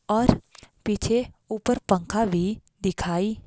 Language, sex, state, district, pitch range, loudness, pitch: Hindi, female, Himachal Pradesh, Shimla, 190-225 Hz, -25 LUFS, 210 Hz